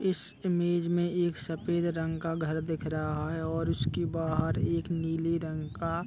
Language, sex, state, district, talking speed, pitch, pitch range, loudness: Hindi, male, Chhattisgarh, Raigarh, 190 wpm, 165 Hz, 160-170 Hz, -31 LUFS